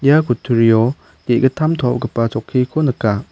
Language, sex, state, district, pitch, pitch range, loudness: Garo, male, Meghalaya, West Garo Hills, 120 Hz, 115-135 Hz, -16 LUFS